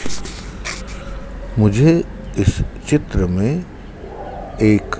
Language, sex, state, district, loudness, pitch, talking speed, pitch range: Hindi, male, Madhya Pradesh, Dhar, -18 LUFS, 110 Hz, 60 wpm, 105-150 Hz